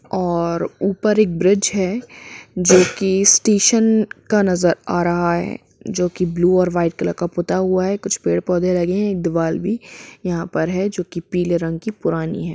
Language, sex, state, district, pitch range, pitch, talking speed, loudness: Hindi, female, Jharkhand, Jamtara, 175-200 Hz, 180 Hz, 190 wpm, -18 LUFS